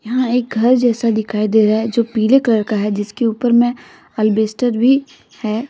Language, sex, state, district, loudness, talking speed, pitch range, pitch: Hindi, female, Jharkhand, Deoghar, -16 LUFS, 200 wpm, 215-245 Hz, 230 Hz